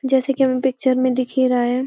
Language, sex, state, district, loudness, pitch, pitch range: Hindi, female, Uttarakhand, Uttarkashi, -18 LUFS, 260 Hz, 255-265 Hz